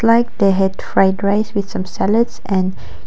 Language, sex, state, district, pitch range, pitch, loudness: English, female, Nagaland, Kohima, 190-225 Hz, 200 Hz, -17 LUFS